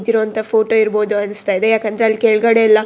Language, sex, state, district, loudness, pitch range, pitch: Kannada, female, Karnataka, Shimoga, -15 LUFS, 215-225 Hz, 220 Hz